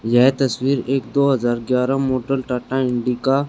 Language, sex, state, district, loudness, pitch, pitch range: Hindi, male, Haryana, Charkhi Dadri, -19 LUFS, 130 Hz, 125-135 Hz